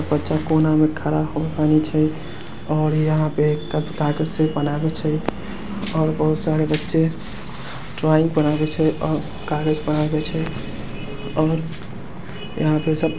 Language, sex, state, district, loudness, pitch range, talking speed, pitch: Maithili, male, Bihar, Samastipur, -21 LUFS, 150-160 Hz, 125 wpm, 155 Hz